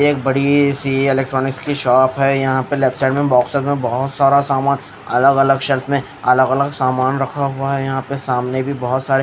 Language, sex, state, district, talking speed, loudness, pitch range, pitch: Hindi, female, Odisha, Khordha, 220 wpm, -16 LUFS, 130-140 Hz, 135 Hz